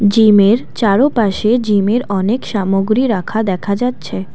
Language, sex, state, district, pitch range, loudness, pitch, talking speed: Bengali, female, Assam, Kamrup Metropolitan, 200-230 Hz, -14 LUFS, 210 Hz, 110 wpm